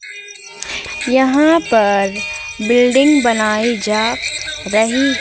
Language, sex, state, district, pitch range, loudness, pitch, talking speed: Hindi, female, Madhya Pradesh, Umaria, 215-280 Hz, -15 LUFS, 240 Hz, 70 wpm